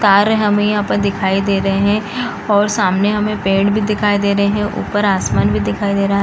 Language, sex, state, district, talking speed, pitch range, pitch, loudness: Hindi, female, Bihar, East Champaran, 230 wpm, 195-210 Hz, 205 Hz, -15 LUFS